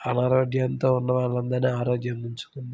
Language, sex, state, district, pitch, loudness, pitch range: Telugu, male, Andhra Pradesh, Srikakulam, 125 Hz, -25 LUFS, 125-130 Hz